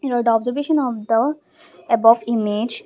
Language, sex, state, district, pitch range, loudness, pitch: English, female, Assam, Kamrup Metropolitan, 225-255 Hz, -18 LUFS, 230 Hz